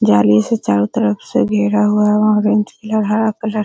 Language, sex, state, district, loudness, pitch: Hindi, female, Bihar, Araria, -15 LUFS, 210 Hz